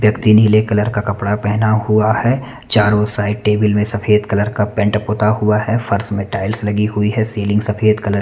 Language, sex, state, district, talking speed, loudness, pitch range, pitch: Hindi, male, Chandigarh, Chandigarh, 210 wpm, -15 LUFS, 105-110 Hz, 105 Hz